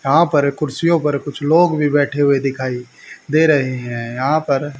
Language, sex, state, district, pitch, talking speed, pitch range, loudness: Hindi, male, Haryana, Rohtak, 145 Hz, 190 wpm, 135-155 Hz, -17 LUFS